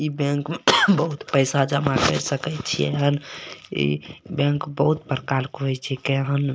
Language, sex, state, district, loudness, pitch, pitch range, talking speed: Maithili, male, Bihar, Supaul, -22 LUFS, 140 Hz, 135-145 Hz, 145 wpm